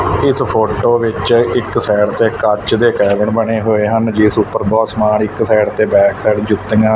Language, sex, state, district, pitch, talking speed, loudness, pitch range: Punjabi, male, Punjab, Fazilka, 110 Hz, 190 wpm, -13 LUFS, 105-110 Hz